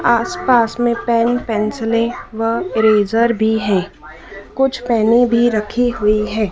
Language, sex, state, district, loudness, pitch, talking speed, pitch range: Hindi, female, Madhya Pradesh, Dhar, -16 LUFS, 230 Hz, 130 wpm, 220-240 Hz